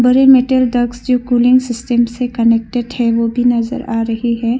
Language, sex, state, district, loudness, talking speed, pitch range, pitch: Hindi, female, Arunachal Pradesh, Longding, -14 LUFS, 155 wpm, 235-250 Hz, 240 Hz